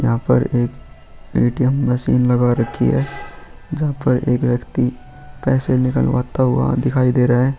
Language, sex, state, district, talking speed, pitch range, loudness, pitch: Hindi, male, Goa, North and South Goa, 150 wpm, 125-130 Hz, -18 LUFS, 125 Hz